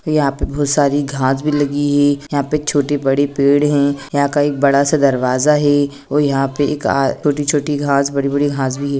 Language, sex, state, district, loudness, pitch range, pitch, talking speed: Hindi, female, Bihar, Gopalganj, -16 LUFS, 140-145 Hz, 145 Hz, 220 wpm